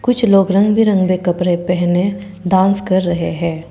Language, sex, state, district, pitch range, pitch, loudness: Hindi, female, Arunachal Pradesh, Papum Pare, 175-195 Hz, 185 Hz, -15 LUFS